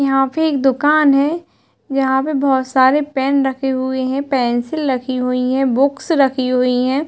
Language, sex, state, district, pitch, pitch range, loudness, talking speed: Hindi, female, Uttar Pradesh, Hamirpur, 270 Hz, 260-280 Hz, -16 LUFS, 180 wpm